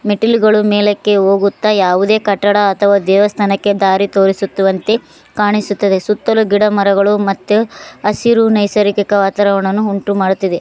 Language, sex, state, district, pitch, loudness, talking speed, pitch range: Kannada, female, Karnataka, Koppal, 205 Hz, -13 LUFS, 100 wpm, 195-210 Hz